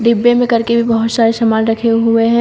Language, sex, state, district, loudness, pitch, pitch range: Hindi, female, Uttar Pradesh, Shamli, -13 LUFS, 230 Hz, 225-235 Hz